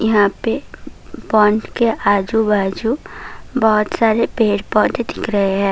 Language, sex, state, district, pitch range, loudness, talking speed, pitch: Hindi, female, Delhi, New Delhi, 205-225 Hz, -17 LUFS, 135 wpm, 215 Hz